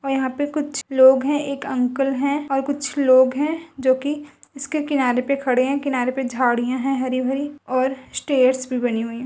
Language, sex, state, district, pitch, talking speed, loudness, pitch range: Hindi, female, Uttar Pradesh, Budaun, 270 Hz, 200 wpm, -20 LUFS, 255-280 Hz